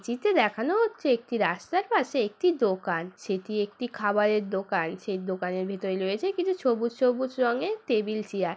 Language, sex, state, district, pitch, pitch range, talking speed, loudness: Bengali, female, West Bengal, Purulia, 215 Hz, 195-260 Hz, 160 wpm, -27 LUFS